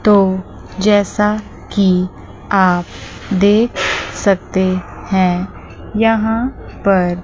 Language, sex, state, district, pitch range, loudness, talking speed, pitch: Hindi, female, Chandigarh, Chandigarh, 185-210 Hz, -16 LUFS, 75 wpm, 195 Hz